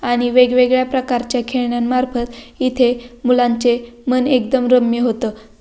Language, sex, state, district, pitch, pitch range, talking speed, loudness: Marathi, female, Maharashtra, Pune, 245 Hz, 240-255 Hz, 105 wpm, -16 LUFS